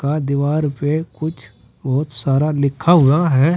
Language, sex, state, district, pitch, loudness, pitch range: Hindi, male, Uttar Pradesh, Saharanpur, 145 Hz, -17 LUFS, 135-155 Hz